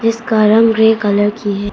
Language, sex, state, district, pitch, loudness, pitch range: Hindi, female, Arunachal Pradesh, Papum Pare, 220 Hz, -12 LUFS, 205-225 Hz